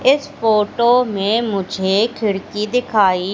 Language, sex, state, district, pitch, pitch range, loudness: Hindi, female, Madhya Pradesh, Katni, 210 Hz, 200-235 Hz, -17 LUFS